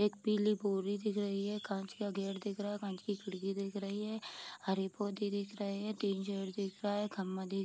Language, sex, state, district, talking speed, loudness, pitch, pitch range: Hindi, female, Bihar, Vaishali, 235 wpm, -38 LUFS, 200 Hz, 195-205 Hz